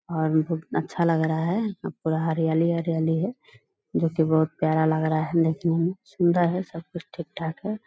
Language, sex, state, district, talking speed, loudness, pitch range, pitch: Hindi, female, Bihar, Purnia, 175 wpm, -25 LUFS, 160-170 Hz, 165 Hz